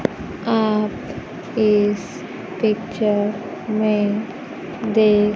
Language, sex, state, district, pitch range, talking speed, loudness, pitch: Hindi, female, Bihar, Kaimur, 210-220 Hz, 55 wpm, -20 LUFS, 210 Hz